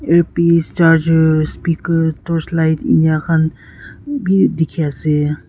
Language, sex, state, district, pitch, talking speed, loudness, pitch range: Nagamese, female, Nagaland, Kohima, 165 Hz, 100 wpm, -15 LUFS, 160-170 Hz